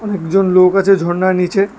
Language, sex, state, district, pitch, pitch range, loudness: Bengali, male, Tripura, West Tripura, 190 Hz, 185-195 Hz, -13 LUFS